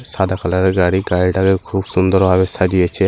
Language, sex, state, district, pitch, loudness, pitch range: Bengali, male, West Bengal, Malda, 95 Hz, -15 LUFS, 90-95 Hz